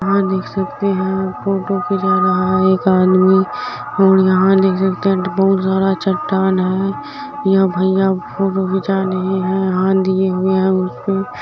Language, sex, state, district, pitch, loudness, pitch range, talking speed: Maithili, female, Bihar, Supaul, 190 Hz, -16 LUFS, 185-195 Hz, 145 wpm